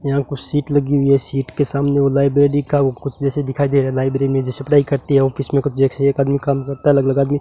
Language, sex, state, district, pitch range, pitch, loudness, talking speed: Hindi, male, Rajasthan, Bikaner, 135-140 Hz, 140 Hz, -17 LUFS, 300 wpm